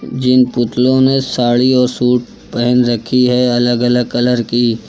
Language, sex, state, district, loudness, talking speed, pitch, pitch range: Hindi, male, Uttar Pradesh, Lucknow, -13 LUFS, 160 wpm, 125 Hz, 120-125 Hz